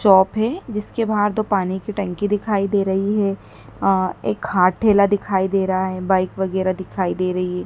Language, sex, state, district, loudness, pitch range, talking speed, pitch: Hindi, female, Madhya Pradesh, Dhar, -20 LUFS, 185-205 Hz, 205 wpm, 195 Hz